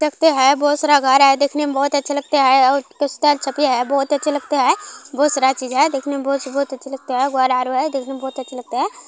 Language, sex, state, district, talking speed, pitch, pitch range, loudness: Maithili, female, Bihar, Kishanganj, 240 wpm, 280 Hz, 265-295 Hz, -17 LUFS